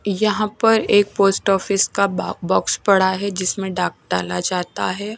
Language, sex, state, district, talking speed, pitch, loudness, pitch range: Hindi, female, Odisha, Nuapada, 175 wpm, 195 Hz, -19 LUFS, 185-205 Hz